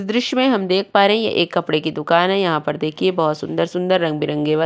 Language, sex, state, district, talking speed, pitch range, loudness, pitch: Hindi, female, Uttar Pradesh, Jyotiba Phule Nagar, 295 wpm, 155-195 Hz, -18 LUFS, 175 Hz